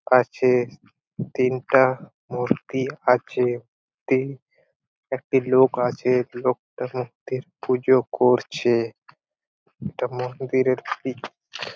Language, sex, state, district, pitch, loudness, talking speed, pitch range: Bengali, male, West Bengal, Purulia, 125 Hz, -23 LUFS, 80 wpm, 125-130 Hz